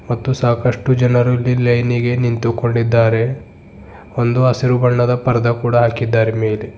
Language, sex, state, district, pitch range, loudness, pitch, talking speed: Kannada, male, Karnataka, Bidar, 115-125 Hz, -15 LUFS, 120 Hz, 135 wpm